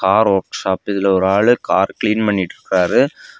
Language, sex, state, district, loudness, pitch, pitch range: Tamil, male, Tamil Nadu, Kanyakumari, -16 LUFS, 100 Hz, 95-105 Hz